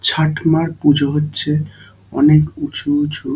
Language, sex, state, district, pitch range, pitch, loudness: Bengali, male, West Bengal, Dakshin Dinajpur, 145-155 Hz, 150 Hz, -16 LUFS